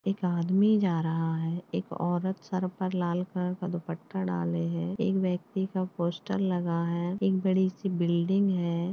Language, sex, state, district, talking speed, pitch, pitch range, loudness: Hindi, male, Uttarakhand, Tehri Garhwal, 175 wpm, 180 Hz, 170-190 Hz, -29 LUFS